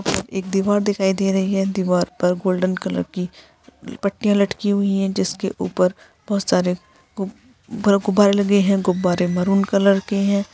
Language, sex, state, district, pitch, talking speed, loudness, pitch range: Hindi, female, Bihar, Gaya, 195 Hz, 160 wpm, -20 LUFS, 185-200 Hz